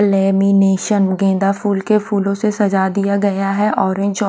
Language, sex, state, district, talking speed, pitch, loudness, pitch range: Hindi, female, Haryana, Charkhi Dadri, 165 wpm, 200 Hz, -16 LUFS, 195-205 Hz